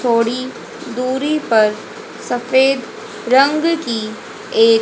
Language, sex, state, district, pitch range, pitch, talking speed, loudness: Hindi, female, Haryana, Jhajjar, 235-305 Hz, 255 Hz, 85 wpm, -16 LUFS